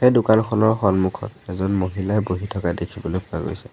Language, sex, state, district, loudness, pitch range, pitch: Assamese, male, Assam, Sonitpur, -21 LUFS, 90-110 Hz, 100 Hz